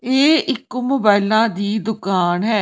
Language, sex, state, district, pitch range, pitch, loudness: Punjabi, female, Punjab, Kapurthala, 205-260 Hz, 220 Hz, -17 LUFS